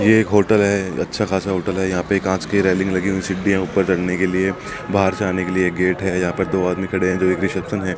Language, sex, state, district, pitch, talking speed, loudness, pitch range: Hindi, male, Rajasthan, Jaipur, 95 Hz, 270 wpm, -19 LUFS, 90-100 Hz